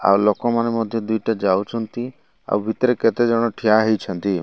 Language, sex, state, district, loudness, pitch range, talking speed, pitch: Odia, male, Odisha, Malkangiri, -20 LUFS, 105-115 Hz, 160 wpm, 110 Hz